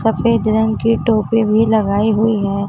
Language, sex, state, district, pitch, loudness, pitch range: Hindi, female, Maharashtra, Mumbai Suburban, 220 Hz, -15 LUFS, 215-225 Hz